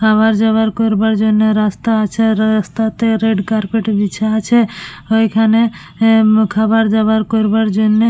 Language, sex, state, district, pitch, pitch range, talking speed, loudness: Bengali, female, West Bengal, Purulia, 220 Hz, 215-225 Hz, 135 wpm, -14 LUFS